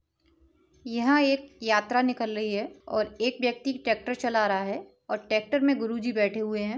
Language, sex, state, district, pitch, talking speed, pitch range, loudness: Hindi, female, Uttar Pradesh, Etah, 230 Hz, 175 wpm, 215-250 Hz, -27 LUFS